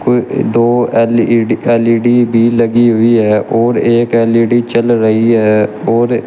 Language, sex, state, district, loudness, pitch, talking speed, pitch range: Hindi, male, Uttar Pradesh, Shamli, -11 LUFS, 115 Hz, 145 wpm, 115-120 Hz